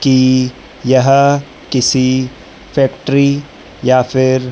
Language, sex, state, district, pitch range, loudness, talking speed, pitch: Hindi, male, Madhya Pradesh, Dhar, 130-140 Hz, -13 LUFS, 80 wpm, 130 Hz